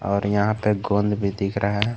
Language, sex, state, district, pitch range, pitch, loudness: Hindi, male, Jharkhand, Garhwa, 100-105 Hz, 100 Hz, -22 LUFS